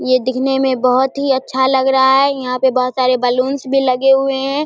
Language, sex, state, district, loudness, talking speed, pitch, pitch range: Hindi, female, Bihar, Samastipur, -14 LUFS, 230 wpm, 265 Hz, 255-270 Hz